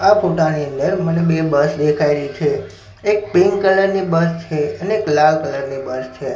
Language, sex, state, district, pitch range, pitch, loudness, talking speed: Gujarati, male, Gujarat, Gandhinagar, 145-190 Hz, 155 Hz, -17 LUFS, 205 wpm